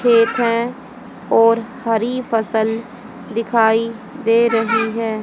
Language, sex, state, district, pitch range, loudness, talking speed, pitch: Hindi, female, Haryana, Jhajjar, 225-240 Hz, -17 LUFS, 105 wpm, 230 Hz